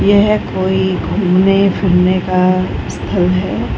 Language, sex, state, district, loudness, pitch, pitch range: Hindi, female, Bihar, Saran, -14 LUFS, 185 Hz, 180-195 Hz